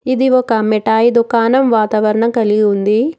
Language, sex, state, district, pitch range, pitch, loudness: Telugu, female, Telangana, Hyderabad, 215-250 Hz, 230 Hz, -13 LUFS